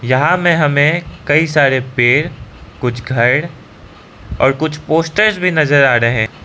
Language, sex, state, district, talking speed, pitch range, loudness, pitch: Hindi, male, Arunachal Pradesh, Lower Dibang Valley, 140 wpm, 120-160 Hz, -13 LUFS, 145 Hz